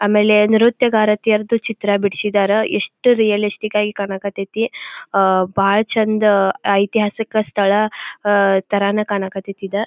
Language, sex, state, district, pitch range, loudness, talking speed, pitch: Kannada, female, Karnataka, Belgaum, 200-215 Hz, -17 LUFS, 120 wpm, 210 Hz